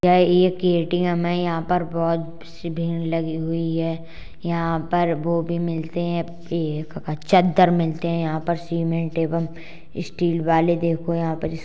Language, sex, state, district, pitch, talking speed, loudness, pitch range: Hindi, male, Uttar Pradesh, Jalaun, 165 Hz, 155 wpm, -22 LUFS, 165-170 Hz